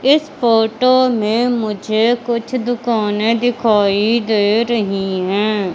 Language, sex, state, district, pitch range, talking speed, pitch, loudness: Hindi, female, Madhya Pradesh, Katni, 210-240 Hz, 95 wpm, 225 Hz, -16 LUFS